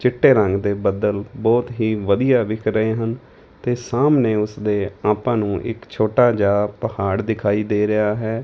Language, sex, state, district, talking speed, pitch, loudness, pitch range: Punjabi, male, Punjab, Fazilka, 165 wpm, 110 Hz, -19 LUFS, 105-120 Hz